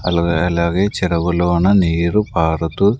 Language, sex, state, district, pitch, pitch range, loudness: Telugu, male, Andhra Pradesh, Sri Satya Sai, 85 Hz, 85-95 Hz, -16 LUFS